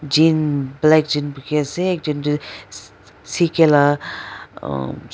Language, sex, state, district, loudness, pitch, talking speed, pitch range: Nagamese, female, Nagaland, Dimapur, -18 LUFS, 145 Hz, 130 wpm, 135-155 Hz